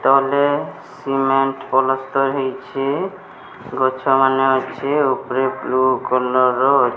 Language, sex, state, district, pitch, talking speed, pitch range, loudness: Odia, female, Odisha, Sambalpur, 135 Hz, 105 wpm, 130-135 Hz, -18 LUFS